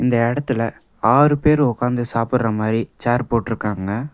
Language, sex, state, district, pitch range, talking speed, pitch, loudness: Tamil, male, Tamil Nadu, Nilgiris, 115-130 Hz, 130 wpm, 120 Hz, -19 LUFS